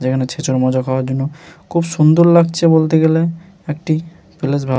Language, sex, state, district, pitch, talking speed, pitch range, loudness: Bengali, male, West Bengal, Malda, 155 Hz, 165 wpm, 135-165 Hz, -15 LUFS